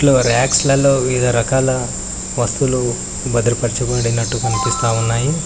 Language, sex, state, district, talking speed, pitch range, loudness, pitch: Telugu, male, Telangana, Mahabubabad, 100 wpm, 115-130 Hz, -16 LUFS, 120 Hz